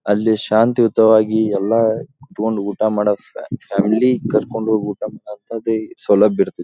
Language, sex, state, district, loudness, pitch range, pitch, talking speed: Kannada, male, Karnataka, Dharwad, -17 LUFS, 105-115 Hz, 110 Hz, 125 wpm